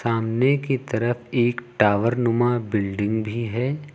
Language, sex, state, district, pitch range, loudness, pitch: Hindi, male, Uttar Pradesh, Lucknow, 110-125 Hz, -22 LUFS, 120 Hz